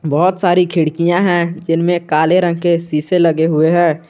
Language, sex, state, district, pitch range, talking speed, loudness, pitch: Hindi, male, Jharkhand, Garhwa, 160-175 Hz, 175 wpm, -14 LUFS, 170 Hz